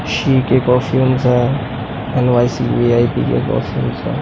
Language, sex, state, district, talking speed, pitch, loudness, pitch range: Hindi, male, Maharashtra, Mumbai Suburban, 100 wpm, 125 Hz, -15 LUFS, 120-130 Hz